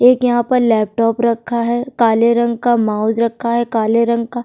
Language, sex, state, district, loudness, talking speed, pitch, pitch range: Hindi, female, Bihar, Kishanganj, -15 LUFS, 215 wpm, 235 Hz, 230-240 Hz